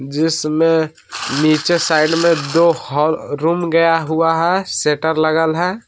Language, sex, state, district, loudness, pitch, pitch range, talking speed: Hindi, male, Jharkhand, Palamu, -16 LUFS, 160 Hz, 155-165 Hz, 145 wpm